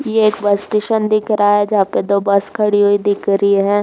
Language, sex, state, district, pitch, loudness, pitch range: Hindi, female, Uttar Pradesh, Jalaun, 205 Hz, -15 LUFS, 200-215 Hz